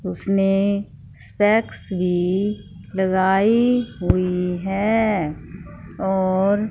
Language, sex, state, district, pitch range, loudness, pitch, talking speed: Hindi, female, Punjab, Fazilka, 180-205 Hz, -20 LUFS, 190 Hz, 65 wpm